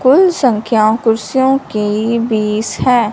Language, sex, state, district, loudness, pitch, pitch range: Hindi, female, Punjab, Fazilka, -13 LUFS, 230 Hz, 215-255 Hz